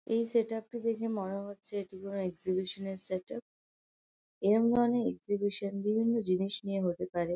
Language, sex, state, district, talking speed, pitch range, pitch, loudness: Bengali, female, West Bengal, North 24 Parganas, 180 wpm, 190-225 Hz, 200 Hz, -33 LUFS